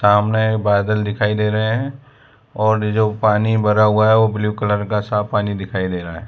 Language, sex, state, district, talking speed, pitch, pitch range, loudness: Hindi, male, Gujarat, Valsad, 210 wpm, 105 Hz, 105-110 Hz, -17 LUFS